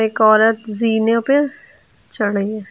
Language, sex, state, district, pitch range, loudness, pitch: Hindi, female, Uttar Pradesh, Lucknow, 215-230 Hz, -16 LUFS, 220 Hz